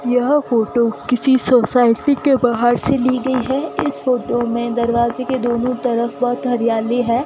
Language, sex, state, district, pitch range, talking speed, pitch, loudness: Hindi, female, Rajasthan, Bikaner, 235-260 Hz, 165 wpm, 245 Hz, -17 LUFS